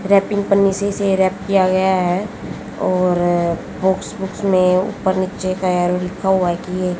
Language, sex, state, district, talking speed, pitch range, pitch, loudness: Hindi, female, Haryana, Jhajjar, 180 wpm, 180-195 Hz, 185 Hz, -18 LUFS